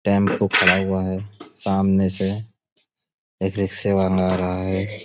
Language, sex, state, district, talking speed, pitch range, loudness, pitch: Hindi, male, Uttar Pradesh, Budaun, 140 wpm, 95-100 Hz, -20 LUFS, 95 Hz